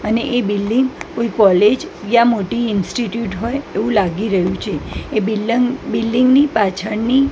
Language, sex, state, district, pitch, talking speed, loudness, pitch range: Gujarati, female, Gujarat, Gandhinagar, 225 Hz, 145 wpm, -17 LUFS, 210-245 Hz